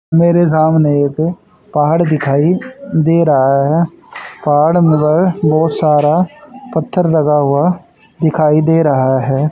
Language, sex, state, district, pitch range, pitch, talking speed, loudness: Hindi, male, Haryana, Jhajjar, 150-170 Hz, 160 Hz, 120 wpm, -13 LUFS